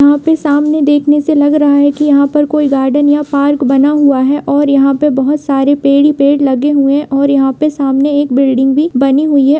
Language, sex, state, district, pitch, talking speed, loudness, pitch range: Hindi, female, Bihar, Kishanganj, 285 Hz, 250 wpm, -10 LUFS, 275-295 Hz